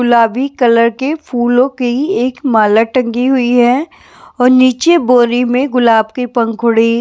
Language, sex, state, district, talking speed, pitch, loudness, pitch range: Hindi, female, Bihar, West Champaran, 155 wpm, 245 Hz, -12 LUFS, 235-260 Hz